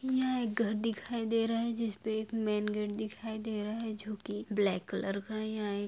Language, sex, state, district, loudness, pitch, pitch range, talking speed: Hindi, female, Jharkhand, Sahebganj, -34 LUFS, 220 Hz, 210-225 Hz, 225 wpm